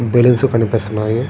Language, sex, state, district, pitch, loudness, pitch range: Telugu, male, Andhra Pradesh, Srikakulam, 115 Hz, -15 LUFS, 115-120 Hz